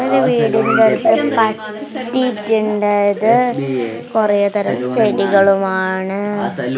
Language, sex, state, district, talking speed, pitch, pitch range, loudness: Malayalam, female, Kerala, Kasaragod, 45 wpm, 210 Hz, 195-225 Hz, -15 LUFS